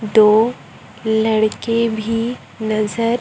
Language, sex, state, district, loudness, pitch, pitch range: Hindi, male, Chhattisgarh, Raipur, -17 LUFS, 220 Hz, 215-230 Hz